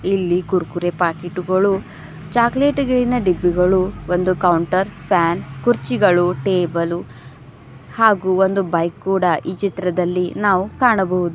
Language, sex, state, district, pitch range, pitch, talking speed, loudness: Kannada, female, Karnataka, Bidar, 170-190 Hz, 180 Hz, 105 wpm, -18 LUFS